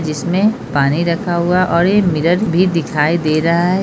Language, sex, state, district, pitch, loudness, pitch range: Hindi, male, Bihar, Darbhanga, 170 Hz, -15 LUFS, 155-180 Hz